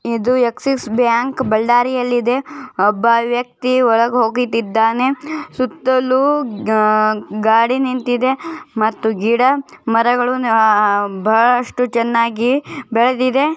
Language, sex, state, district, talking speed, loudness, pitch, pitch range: Kannada, female, Karnataka, Bellary, 80 wpm, -16 LUFS, 245 Hz, 225-255 Hz